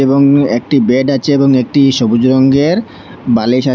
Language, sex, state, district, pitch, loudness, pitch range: Bengali, male, Assam, Hailakandi, 135 Hz, -11 LUFS, 125-140 Hz